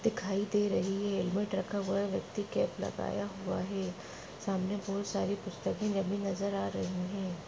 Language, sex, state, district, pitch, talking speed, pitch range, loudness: Hindi, female, Maharashtra, Dhule, 195 Hz, 145 wpm, 190-200 Hz, -34 LUFS